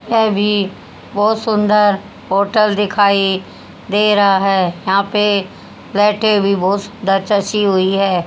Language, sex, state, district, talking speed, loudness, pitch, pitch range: Hindi, female, Haryana, Rohtak, 125 wpm, -15 LUFS, 200 Hz, 195-210 Hz